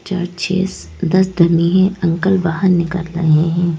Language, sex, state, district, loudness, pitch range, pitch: Hindi, female, Madhya Pradesh, Bhopal, -15 LUFS, 170-185 Hz, 175 Hz